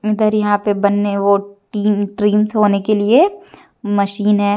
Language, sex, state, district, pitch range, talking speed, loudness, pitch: Hindi, female, Jharkhand, Deoghar, 205-215 Hz, 155 wpm, -15 LUFS, 205 Hz